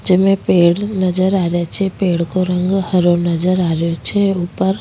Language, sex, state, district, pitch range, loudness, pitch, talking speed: Rajasthani, female, Rajasthan, Nagaur, 175-190 Hz, -16 LUFS, 185 Hz, 200 wpm